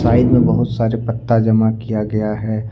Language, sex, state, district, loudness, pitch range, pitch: Hindi, male, Jharkhand, Deoghar, -16 LUFS, 110-115 Hz, 110 Hz